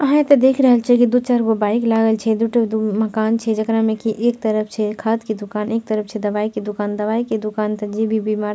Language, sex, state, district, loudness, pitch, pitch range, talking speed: Maithili, female, Bihar, Purnia, -18 LUFS, 220 Hz, 215-230 Hz, 275 wpm